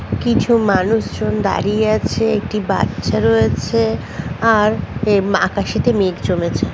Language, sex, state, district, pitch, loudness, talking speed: Bengali, female, West Bengal, Jhargram, 200 Hz, -17 LUFS, 115 wpm